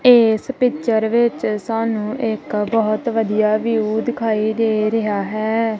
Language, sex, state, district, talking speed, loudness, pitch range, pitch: Punjabi, female, Punjab, Kapurthala, 125 wpm, -18 LUFS, 215-230 Hz, 220 Hz